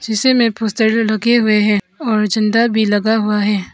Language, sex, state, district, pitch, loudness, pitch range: Hindi, female, Arunachal Pradesh, Papum Pare, 220 Hz, -15 LUFS, 210-230 Hz